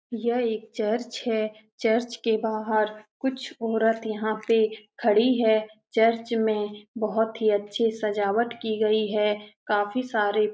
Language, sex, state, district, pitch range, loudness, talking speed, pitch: Hindi, female, Uttar Pradesh, Etah, 215-230 Hz, -25 LUFS, 140 wpm, 220 Hz